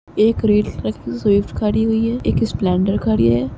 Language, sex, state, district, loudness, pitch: Hindi, female, Uttar Pradesh, Muzaffarnagar, -18 LUFS, 195 Hz